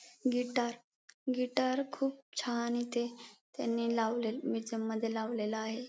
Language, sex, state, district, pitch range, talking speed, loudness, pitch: Marathi, female, Maharashtra, Pune, 225-250 Hz, 110 wpm, -35 LUFS, 235 Hz